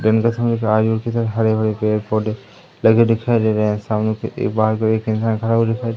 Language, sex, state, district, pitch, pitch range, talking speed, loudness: Hindi, male, Madhya Pradesh, Umaria, 110 Hz, 110-115 Hz, 190 wpm, -18 LUFS